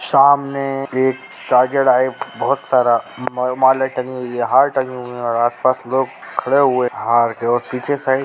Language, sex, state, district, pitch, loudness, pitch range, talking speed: Hindi, male, Bihar, Jamui, 130 Hz, -17 LUFS, 125-135 Hz, 180 wpm